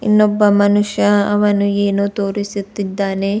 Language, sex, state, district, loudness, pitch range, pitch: Kannada, female, Karnataka, Bidar, -15 LUFS, 200-205 Hz, 205 Hz